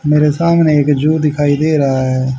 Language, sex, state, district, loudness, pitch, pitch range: Hindi, male, Haryana, Charkhi Dadri, -13 LUFS, 150 Hz, 140-155 Hz